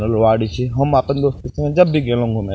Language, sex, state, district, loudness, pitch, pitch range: Maithili, male, Bihar, Purnia, -17 LUFS, 125 Hz, 110-140 Hz